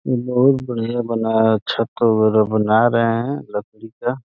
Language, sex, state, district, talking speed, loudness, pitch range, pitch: Hindi, male, Uttar Pradesh, Deoria, 140 wpm, -18 LUFS, 110-120 Hz, 115 Hz